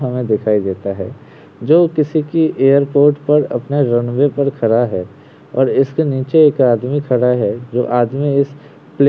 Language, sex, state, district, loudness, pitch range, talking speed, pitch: Hindi, male, Uttar Pradesh, Varanasi, -15 LUFS, 120-145 Hz, 180 wpm, 140 Hz